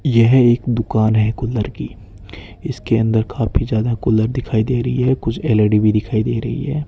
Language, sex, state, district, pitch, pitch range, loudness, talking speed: Hindi, male, Rajasthan, Bikaner, 115 Hz, 110-125 Hz, -17 LUFS, 190 wpm